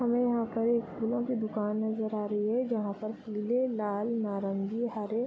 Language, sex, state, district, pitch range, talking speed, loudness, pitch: Hindi, female, Bihar, Gopalganj, 210-235 Hz, 205 wpm, -31 LUFS, 220 Hz